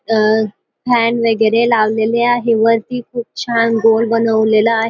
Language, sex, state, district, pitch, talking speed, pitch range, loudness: Marathi, female, Maharashtra, Dhule, 230 Hz, 120 wpm, 220-235 Hz, -14 LUFS